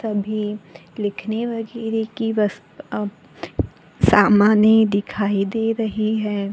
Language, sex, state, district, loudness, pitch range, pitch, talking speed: Hindi, female, Maharashtra, Gondia, -20 LUFS, 205-220 Hz, 215 Hz, 100 wpm